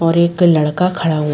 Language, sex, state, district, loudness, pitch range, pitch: Hindi, female, Chhattisgarh, Rajnandgaon, -14 LUFS, 155-175 Hz, 165 Hz